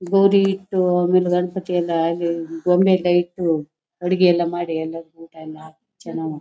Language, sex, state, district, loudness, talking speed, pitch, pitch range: Kannada, female, Karnataka, Shimoga, -19 LUFS, 160 wpm, 175 Hz, 165-180 Hz